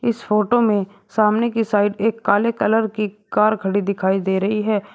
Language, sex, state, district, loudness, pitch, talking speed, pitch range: Hindi, male, Uttar Pradesh, Shamli, -19 LUFS, 210 Hz, 195 wpm, 200-225 Hz